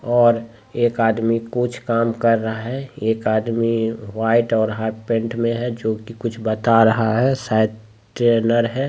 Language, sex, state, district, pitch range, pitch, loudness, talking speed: Hindi, male, Bihar, Begusarai, 110-120 Hz, 115 Hz, -19 LUFS, 180 wpm